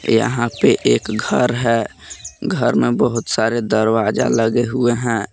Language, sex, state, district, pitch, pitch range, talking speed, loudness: Hindi, male, Jharkhand, Palamu, 115 Hz, 110-120 Hz, 145 wpm, -17 LUFS